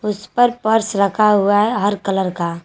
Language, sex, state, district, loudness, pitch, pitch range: Hindi, female, Jharkhand, Garhwa, -16 LUFS, 205 Hz, 195-215 Hz